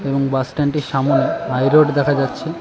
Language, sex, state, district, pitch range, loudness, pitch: Bengali, male, West Bengal, Cooch Behar, 135-145 Hz, -17 LUFS, 140 Hz